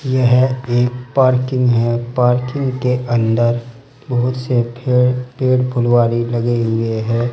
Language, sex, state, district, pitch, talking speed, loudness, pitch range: Hindi, male, Uttar Pradesh, Saharanpur, 125 Hz, 125 wpm, -16 LUFS, 120-130 Hz